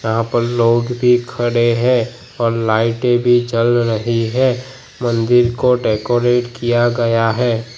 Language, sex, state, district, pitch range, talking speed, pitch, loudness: Hindi, male, Gujarat, Gandhinagar, 115-120 Hz, 140 wpm, 120 Hz, -16 LUFS